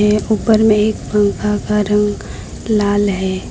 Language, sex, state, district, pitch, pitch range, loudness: Hindi, female, West Bengal, Alipurduar, 210 Hz, 205-215 Hz, -15 LUFS